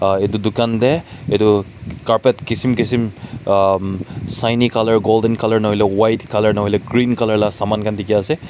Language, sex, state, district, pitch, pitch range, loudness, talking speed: Nagamese, male, Nagaland, Kohima, 110 Hz, 105-115 Hz, -17 LUFS, 175 wpm